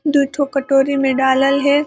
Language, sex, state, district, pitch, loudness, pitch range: Hindi, female, Chhattisgarh, Balrampur, 275 Hz, -16 LUFS, 270-285 Hz